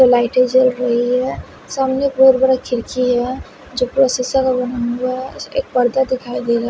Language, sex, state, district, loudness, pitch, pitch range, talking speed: Hindi, female, Himachal Pradesh, Shimla, -16 LUFS, 255 Hz, 245-260 Hz, 180 wpm